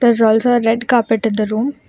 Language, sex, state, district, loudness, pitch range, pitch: English, female, Karnataka, Bangalore, -15 LUFS, 225-240 Hz, 230 Hz